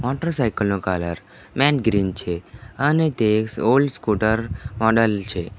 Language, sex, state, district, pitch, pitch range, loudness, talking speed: Gujarati, male, Gujarat, Valsad, 110 Hz, 100-125 Hz, -21 LUFS, 140 wpm